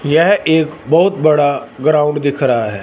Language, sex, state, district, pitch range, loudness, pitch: Hindi, male, Punjab, Fazilka, 140-160 Hz, -13 LUFS, 150 Hz